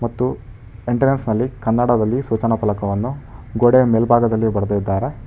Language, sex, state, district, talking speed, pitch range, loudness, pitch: Kannada, male, Karnataka, Bangalore, 100 wpm, 110-120 Hz, -18 LUFS, 115 Hz